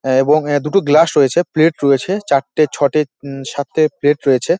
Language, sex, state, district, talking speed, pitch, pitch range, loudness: Bengali, male, West Bengal, Dakshin Dinajpur, 170 wpm, 145 Hz, 140-155 Hz, -15 LUFS